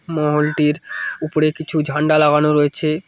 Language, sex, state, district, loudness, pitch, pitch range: Bengali, male, West Bengal, Cooch Behar, -17 LUFS, 155 Hz, 150-155 Hz